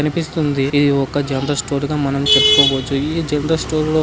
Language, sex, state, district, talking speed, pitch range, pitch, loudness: Telugu, male, Andhra Pradesh, Guntur, 180 wpm, 140-155 Hz, 145 Hz, -16 LUFS